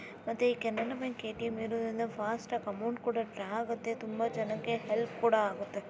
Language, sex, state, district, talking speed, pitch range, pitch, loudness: Kannada, female, Karnataka, Raichur, 175 wpm, 220-235 Hz, 230 Hz, -34 LUFS